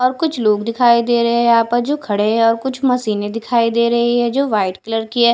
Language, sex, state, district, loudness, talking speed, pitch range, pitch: Hindi, female, Punjab, Kapurthala, -16 LUFS, 270 wpm, 225-240 Hz, 235 Hz